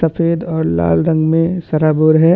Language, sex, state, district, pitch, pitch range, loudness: Hindi, male, Chhattisgarh, Bastar, 160 Hz, 155-165 Hz, -14 LUFS